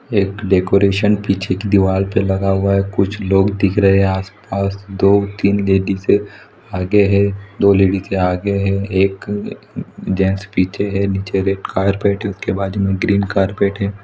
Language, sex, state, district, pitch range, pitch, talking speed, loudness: Hindi, male, Chhattisgarh, Raigarh, 95-100 Hz, 100 Hz, 160 wpm, -16 LUFS